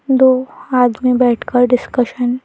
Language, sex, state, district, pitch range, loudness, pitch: Hindi, female, Madhya Pradesh, Bhopal, 245-260 Hz, -14 LUFS, 250 Hz